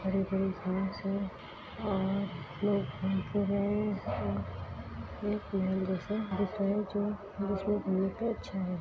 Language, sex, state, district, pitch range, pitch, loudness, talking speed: Hindi, female, Uttar Pradesh, Etah, 190-205 Hz, 195 Hz, -34 LUFS, 130 wpm